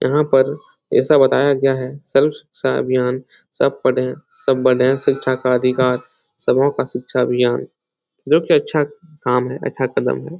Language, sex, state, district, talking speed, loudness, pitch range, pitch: Hindi, male, Bihar, Supaul, 165 wpm, -17 LUFS, 125-140 Hz, 130 Hz